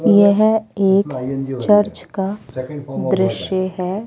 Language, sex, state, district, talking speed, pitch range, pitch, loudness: Hindi, female, Rajasthan, Jaipur, 90 wpm, 145-205 Hz, 190 Hz, -18 LUFS